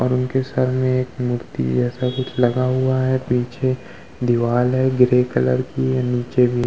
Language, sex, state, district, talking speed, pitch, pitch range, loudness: Hindi, male, Uttar Pradesh, Muzaffarnagar, 160 wpm, 125 Hz, 120-130 Hz, -20 LUFS